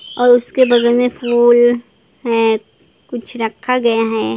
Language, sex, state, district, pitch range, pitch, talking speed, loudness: Hindi, female, Jharkhand, Jamtara, 225-245 Hz, 240 Hz, 150 wpm, -14 LUFS